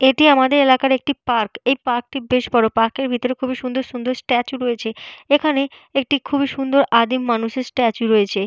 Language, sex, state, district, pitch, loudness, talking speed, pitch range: Bengali, female, Jharkhand, Jamtara, 255 Hz, -18 LUFS, 185 wpm, 240-270 Hz